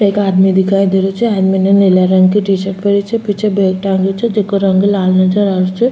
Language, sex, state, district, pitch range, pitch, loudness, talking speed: Rajasthani, female, Rajasthan, Churu, 190-205 Hz, 195 Hz, -12 LUFS, 255 wpm